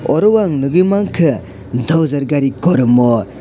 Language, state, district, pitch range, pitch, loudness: Kokborok, Tripura, West Tripura, 120-175 Hz, 140 Hz, -14 LUFS